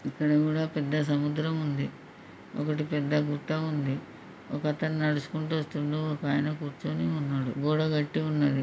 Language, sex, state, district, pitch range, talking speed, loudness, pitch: Telugu, male, Andhra Pradesh, Srikakulam, 145-155 Hz, 130 wpm, -29 LUFS, 150 Hz